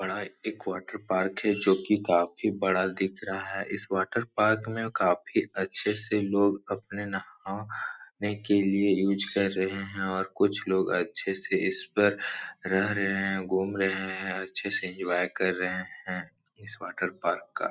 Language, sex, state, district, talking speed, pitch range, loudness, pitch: Hindi, male, Uttar Pradesh, Etah, 165 wpm, 95-100 Hz, -29 LUFS, 95 Hz